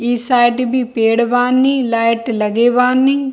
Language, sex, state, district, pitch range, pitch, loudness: Hindi, female, Bihar, Darbhanga, 230-255 Hz, 245 Hz, -14 LUFS